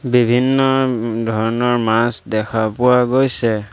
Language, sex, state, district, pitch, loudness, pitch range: Assamese, male, Assam, Sonitpur, 120 Hz, -16 LUFS, 115-125 Hz